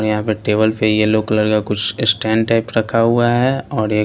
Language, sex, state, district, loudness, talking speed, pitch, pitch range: Hindi, male, Bihar, Patna, -16 LUFS, 220 wpm, 110 Hz, 105-115 Hz